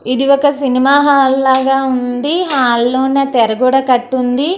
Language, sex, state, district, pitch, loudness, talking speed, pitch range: Telugu, female, Andhra Pradesh, Guntur, 265 Hz, -12 LUFS, 155 wpm, 250-275 Hz